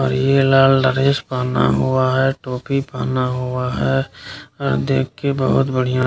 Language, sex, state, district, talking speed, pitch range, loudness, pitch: Hindi, male, Bihar, Kishanganj, 170 wpm, 125-135 Hz, -18 LUFS, 130 Hz